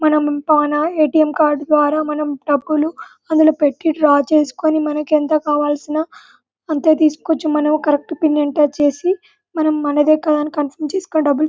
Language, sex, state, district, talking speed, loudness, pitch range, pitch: Telugu, female, Telangana, Karimnagar, 145 wpm, -16 LUFS, 295-315 Hz, 305 Hz